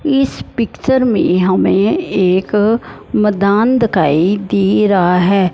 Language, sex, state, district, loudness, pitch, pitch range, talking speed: Hindi, male, Punjab, Fazilka, -13 LUFS, 200 Hz, 190-230 Hz, 110 wpm